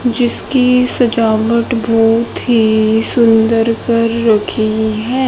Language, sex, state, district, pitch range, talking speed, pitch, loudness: Hindi, male, Haryana, Charkhi Dadri, 220-240 Hz, 90 wpm, 230 Hz, -13 LUFS